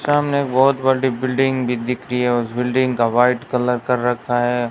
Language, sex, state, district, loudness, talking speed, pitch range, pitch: Hindi, male, Rajasthan, Bikaner, -18 LUFS, 215 wpm, 120-130 Hz, 125 Hz